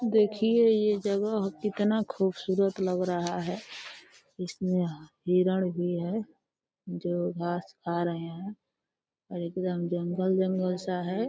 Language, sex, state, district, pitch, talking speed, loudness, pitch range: Hindi, female, Uttar Pradesh, Deoria, 185 Hz, 120 wpm, -29 LUFS, 175-205 Hz